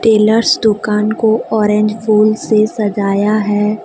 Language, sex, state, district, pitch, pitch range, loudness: Hindi, female, Jharkhand, Deoghar, 215 Hz, 210-220 Hz, -13 LUFS